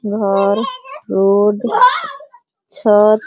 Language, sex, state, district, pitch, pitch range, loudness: Hindi, female, Bihar, Sitamarhi, 210 Hz, 205-295 Hz, -14 LUFS